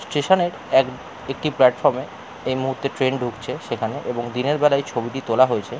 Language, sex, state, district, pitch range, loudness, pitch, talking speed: Bengali, male, West Bengal, Jalpaiguri, 125-140 Hz, -21 LUFS, 130 Hz, 155 wpm